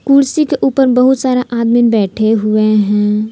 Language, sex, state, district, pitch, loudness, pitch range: Hindi, female, Jharkhand, Palamu, 235 Hz, -12 LUFS, 215-265 Hz